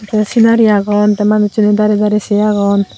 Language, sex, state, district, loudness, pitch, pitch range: Chakma, female, Tripura, Unakoti, -11 LUFS, 210 Hz, 205-210 Hz